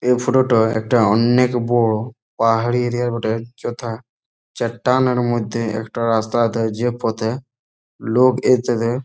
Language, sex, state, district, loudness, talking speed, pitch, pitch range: Bengali, male, West Bengal, Jalpaiguri, -18 LUFS, 120 wpm, 120 Hz, 115-125 Hz